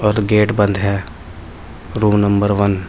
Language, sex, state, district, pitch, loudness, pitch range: Hindi, male, Uttar Pradesh, Saharanpur, 100 Hz, -16 LUFS, 90-105 Hz